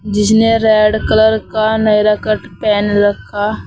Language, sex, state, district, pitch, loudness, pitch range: Hindi, female, Uttar Pradesh, Saharanpur, 215 Hz, -13 LUFS, 210-220 Hz